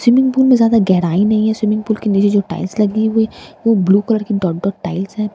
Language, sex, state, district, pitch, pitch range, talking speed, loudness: Hindi, female, Bihar, Katihar, 210 Hz, 195-220 Hz, 290 wpm, -15 LUFS